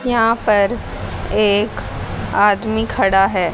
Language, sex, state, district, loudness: Hindi, female, Haryana, Jhajjar, -17 LUFS